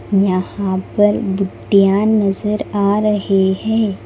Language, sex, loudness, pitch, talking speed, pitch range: Hindi, female, -16 LUFS, 200 Hz, 105 wpm, 195-210 Hz